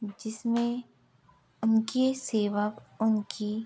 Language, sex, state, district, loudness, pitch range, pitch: Hindi, female, Bihar, Begusarai, -29 LUFS, 215-235 Hz, 220 Hz